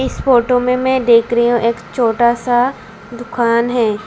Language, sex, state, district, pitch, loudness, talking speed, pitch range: Hindi, female, Tripura, West Tripura, 240 Hz, -14 LUFS, 175 wpm, 230-250 Hz